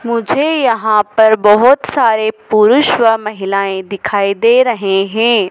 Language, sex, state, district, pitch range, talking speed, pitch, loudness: Hindi, female, Madhya Pradesh, Dhar, 200-235 Hz, 130 wpm, 220 Hz, -12 LUFS